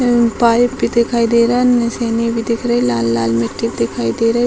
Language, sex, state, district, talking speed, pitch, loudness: Hindi, female, Bihar, Sitamarhi, 215 wpm, 230 Hz, -15 LUFS